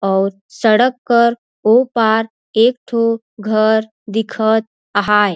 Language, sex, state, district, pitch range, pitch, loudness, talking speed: Surgujia, female, Chhattisgarh, Sarguja, 215-235 Hz, 220 Hz, -16 LUFS, 110 wpm